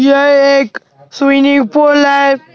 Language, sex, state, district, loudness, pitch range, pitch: Hindi, male, Madhya Pradesh, Bhopal, -9 LUFS, 270-280 Hz, 275 Hz